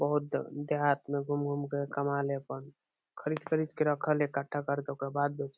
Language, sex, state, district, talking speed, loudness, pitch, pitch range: Bhojpuri, male, Bihar, Saran, 195 wpm, -33 LUFS, 145 Hz, 140-150 Hz